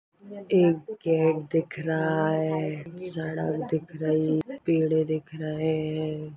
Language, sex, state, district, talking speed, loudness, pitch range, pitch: Hindi, female, Chhattisgarh, Bastar, 125 wpm, -27 LUFS, 155-165 Hz, 160 Hz